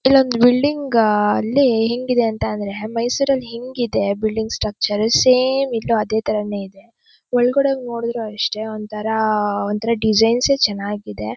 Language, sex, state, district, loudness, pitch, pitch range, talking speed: Kannada, female, Karnataka, Shimoga, -18 LUFS, 225 Hz, 210-250 Hz, 140 wpm